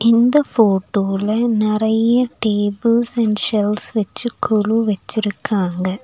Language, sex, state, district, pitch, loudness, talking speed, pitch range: Tamil, female, Tamil Nadu, Nilgiris, 215 Hz, -17 LUFS, 90 wpm, 205-230 Hz